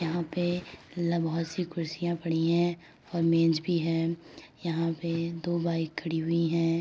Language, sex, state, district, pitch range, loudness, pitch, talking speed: Hindi, female, Uttar Pradesh, Etah, 165-170 Hz, -29 LUFS, 165 Hz, 160 wpm